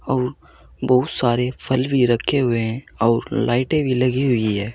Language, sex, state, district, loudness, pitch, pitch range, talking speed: Hindi, male, Uttar Pradesh, Saharanpur, -20 LUFS, 125 Hz, 120-130 Hz, 175 wpm